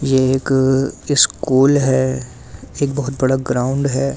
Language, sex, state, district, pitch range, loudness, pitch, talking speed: Hindi, male, Delhi, New Delhi, 130-140 Hz, -16 LUFS, 130 Hz, 145 wpm